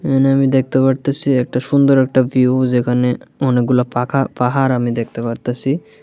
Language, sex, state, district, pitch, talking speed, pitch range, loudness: Bengali, male, Tripura, West Tripura, 130 Hz, 140 wpm, 125-135 Hz, -16 LUFS